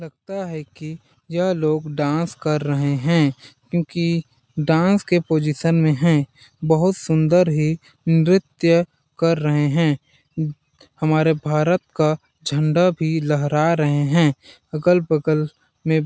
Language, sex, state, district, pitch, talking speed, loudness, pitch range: Hindi, male, Chhattisgarh, Balrampur, 155 Hz, 120 wpm, -20 LUFS, 150-165 Hz